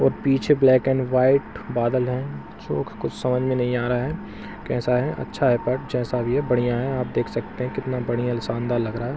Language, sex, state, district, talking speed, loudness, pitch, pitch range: Hindi, male, Bihar, Bhagalpur, 230 wpm, -23 LUFS, 125 Hz, 120-130 Hz